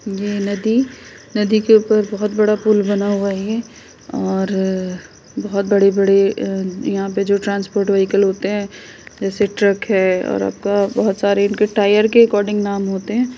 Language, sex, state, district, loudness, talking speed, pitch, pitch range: Hindi, female, Uttar Pradesh, Hamirpur, -17 LUFS, 170 wpm, 200 Hz, 195-210 Hz